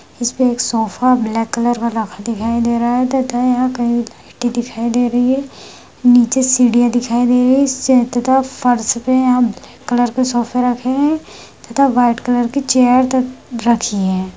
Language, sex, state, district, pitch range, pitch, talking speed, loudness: Hindi, female, Bihar, Lakhisarai, 235-255 Hz, 245 Hz, 180 wpm, -15 LUFS